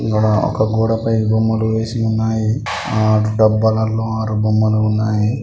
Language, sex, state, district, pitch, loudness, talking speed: Telugu, male, Andhra Pradesh, Guntur, 110 Hz, -16 LUFS, 145 wpm